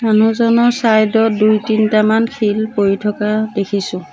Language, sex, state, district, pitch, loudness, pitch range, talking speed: Assamese, female, Assam, Sonitpur, 215 Hz, -14 LUFS, 210-225 Hz, 130 wpm